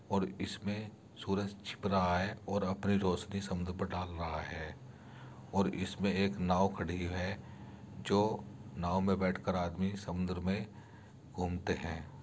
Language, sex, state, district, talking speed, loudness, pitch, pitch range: Hindi, male, Uttar Pradesh, Muzaffarnagar, 140 wpm, -36 LUFS, 95 Hz, 90-100 Hz